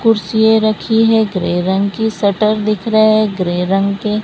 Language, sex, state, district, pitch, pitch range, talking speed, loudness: Hindi, female, Maharashtra, Mumbai Suburban, 215 Hz, 195-220 Hz, 185 wpm, -14 LUFS